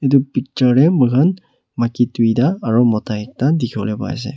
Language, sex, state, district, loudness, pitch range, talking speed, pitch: Nagamese, male, Nagaland, Kohima, -16 LUFS, 115-135 Hz, 195 wpm, 125 Hz